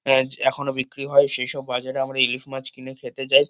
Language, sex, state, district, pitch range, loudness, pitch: Bengali, male, West Bengal, Kolkata, 130-135 Hz, -20 LUFS, 135 Hz